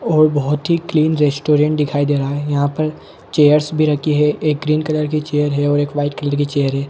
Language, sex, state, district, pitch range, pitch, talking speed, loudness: Hindi, male, Chhattisgarh, Bilaspur, 145-155 Hz, 150 Hz, 260 wpm, -16 LUFS